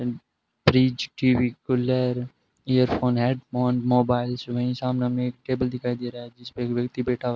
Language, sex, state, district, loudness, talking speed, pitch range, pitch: Hindi, male, Rajasthan, Bikaner, -24 LUFS, 180 wpm, 120-125 Hz, 125 Hz